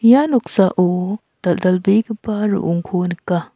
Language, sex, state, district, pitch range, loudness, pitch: Garo, female, Meghalaya, South Garo Hills, 180-215 Hz, -17 LUFS, 190 Hz